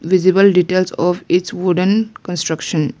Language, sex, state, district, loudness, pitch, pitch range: English, female, Arunachal Pradesh, Lower Dibang Valley, -16 LUFS, 180 Hz, 175-185 Hz